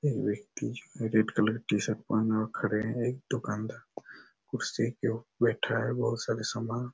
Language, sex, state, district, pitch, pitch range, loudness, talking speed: Hindi, male, Chhattisgarh, Raigarh, 110 Hz, 110-120 Hz, -31 LUFS, 180 wpm